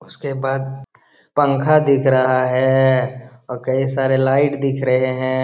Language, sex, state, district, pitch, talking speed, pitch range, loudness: Hindi, male, Jharkhand, Jamtara, 135 Hz, 145 wpm, 130-135 Hz, -17 LUFS